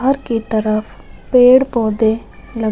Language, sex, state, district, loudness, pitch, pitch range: Hindi, female, Punjab, Fazilka, -15 LUFS, 230 Hz, 220-250 Hz